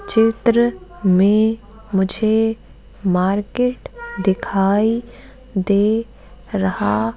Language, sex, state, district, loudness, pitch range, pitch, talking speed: Hindi, female, Madhya Pradesh, Bhopal, -18 LUFS, 190-230 Hz, 210 Hz, 60 wpm